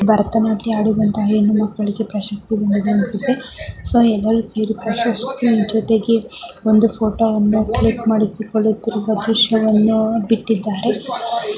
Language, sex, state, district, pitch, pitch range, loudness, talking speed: Kannada, male, Karnataka, Mysore, 220 Hz, 215-225 Hz, -17 LUFS, 95 wpm